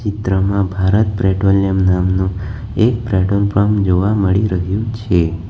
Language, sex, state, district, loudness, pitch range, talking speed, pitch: Gujarati, male, Gujarat, Valsad, -16 LUFS, 95-105 Hz, 120 wpm, 95 Hz